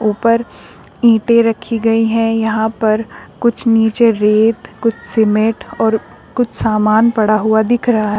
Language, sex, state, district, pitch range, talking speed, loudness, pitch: Hindi, female, Uttar Pradesh, Shamli, 215-230 Hz, 140 wpm, -14 LUFS, 225 Hz